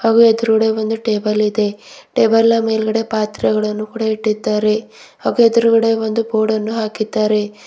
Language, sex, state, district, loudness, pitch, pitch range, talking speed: Kannada, female, Karnataka, Bidar, -16 LUFS, 220 Hz, 215-225 Hz, 125 wpm